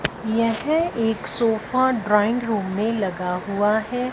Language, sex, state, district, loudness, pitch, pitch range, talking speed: Hindi, female, Punjab, Fazilka, -22 LUFS, 220 Hz, 205-240 Hz, 130 wpm